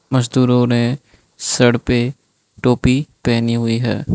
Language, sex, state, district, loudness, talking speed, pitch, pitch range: Hindi, male, Manipur, Imphal West, -17 LUFS, 115 wpm, 120 Hz, 115-125 Hz